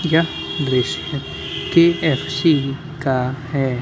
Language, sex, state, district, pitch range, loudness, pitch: Hindi, male, Bihar, Muzaffarpur, 130-165 Hz, -19 LUFS, 145 Hz